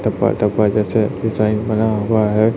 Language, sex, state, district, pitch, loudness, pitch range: Hindi, male, Chhattisgarh, Raipur, 110 Hz, -17 LUFS, 105-110 Hz